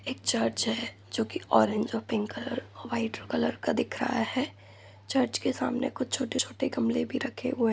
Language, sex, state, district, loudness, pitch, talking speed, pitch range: Hindi, female, Uttar Pradesh, Budaun, -30 LUFS, 245 Hz, 200 wpm, 225-260 Hz